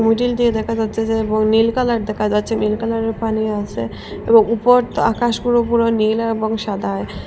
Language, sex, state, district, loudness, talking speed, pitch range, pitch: Bengali, female, Assam, Hailakandi, -17 LUFS, 190 wpm, 215-230 Hz, 225 Hz